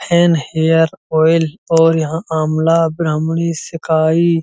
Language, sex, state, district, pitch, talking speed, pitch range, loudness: Hindi, male, Uttar Pradesh, Muzaffarnagar, 165 Hz, 110 wpm, 160-165 Hz, -15 LUFS